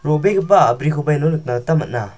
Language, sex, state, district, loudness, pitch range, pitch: Garo, male, Meghalaya, South Garo Hills, -16 LUFS, 125-160 Hz, 150 Hz